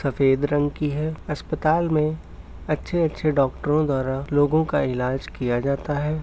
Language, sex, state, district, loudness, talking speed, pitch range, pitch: Hindi, male, Bihar, Muzaffarpur, -23 LUFS, 145 wpm, 140-155 Hz, 145 Hz